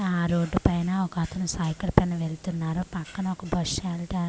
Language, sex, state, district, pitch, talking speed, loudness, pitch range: Telugu, female, Andhra Pradesh, Manyam, 175 Hz, 155 wpm, -27 LUFS, 170-185 Hz